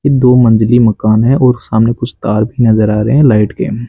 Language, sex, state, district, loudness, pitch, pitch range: Hindi, male, Rajasthan, Bikaner, -10 LUFS, 115 Hz, 110-125 Hz